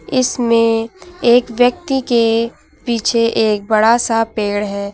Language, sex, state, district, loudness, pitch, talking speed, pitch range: Hindi, female, Uttar Pradesh, Lucknow, -15 LUFS, 230 Hz, 120 wpm, 225-245 Hz